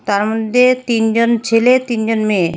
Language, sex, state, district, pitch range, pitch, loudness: Bengali, female, Assam, Hailakandi, 215-240 Hz, 225 Hz, -14 LUFS